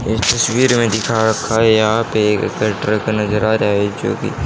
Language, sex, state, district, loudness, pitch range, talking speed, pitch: Hindi, male, Haryana, Charkhi Dadri, -15 LUFS, 105-115 Hz, 215 wpm, 110 Hz